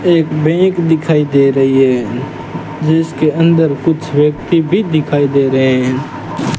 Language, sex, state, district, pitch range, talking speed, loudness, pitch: Hindi, male, Rajasthan, Bikaner, 140-165 Hz, 135 wpm, -13 LUFS, 155 Hz